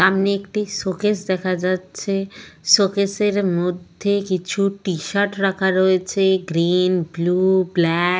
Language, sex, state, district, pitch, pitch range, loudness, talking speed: Bengali, female, West Bengal, Purulia, 190 Hz, 180-200 Hz, -20 LUFS, 115 wpm